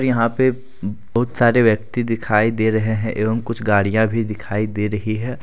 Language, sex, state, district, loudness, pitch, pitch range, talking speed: Hindi, male, Jharkhand, Deoghar, -19 LUFS, 110 Hz, 105-120 Hz, 190 wpm